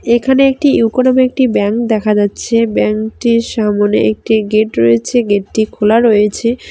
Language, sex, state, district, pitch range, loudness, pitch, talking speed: Bengali, female, West Bengal, Cooch Behar, 210-240 Hz, -12 LUFS, 220 Hz, 160 wpm